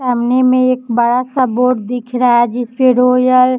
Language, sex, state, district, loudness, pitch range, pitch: Hindi, female, Uttar Pradesh, Jyotiba Phule Nagar, -13 LUFS, 245-255 Hz, 250 Hz